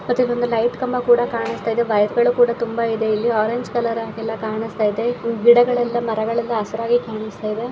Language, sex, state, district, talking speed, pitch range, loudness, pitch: Kannada, female, Karnataka, Mysore, 165 wpm, 220-240 Hz, -19 LUFS, 230 Hz